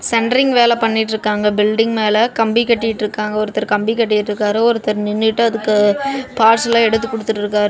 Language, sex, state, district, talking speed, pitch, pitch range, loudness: Tamil, female, Tamil Nadu, Namakkal, 150 wpm, 220 Hz, 210-230 Hz, -15 LUFS